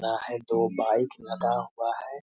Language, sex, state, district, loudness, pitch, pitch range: Hindi, male, Bihar, Muzaffarpur, -28 LUFS, 115 Hz, 110-120 Hz